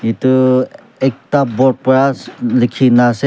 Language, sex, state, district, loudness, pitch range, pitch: Nagamese, male, Nagaland, Kohima, -13 LUFS, 125-135 Hz, 130 Hz